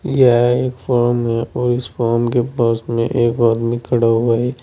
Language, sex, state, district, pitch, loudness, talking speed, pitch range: Hindi, male, Uttar Pradesh, Saharanpur, 120 Hz, -16 LUFS, 180 wpm, 115-125 Hz